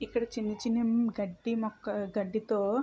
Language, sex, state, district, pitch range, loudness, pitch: Telugu, female, Andhra Pradesh, Chittoor, 205-235 Hz, -32 LUFS, 220 Hz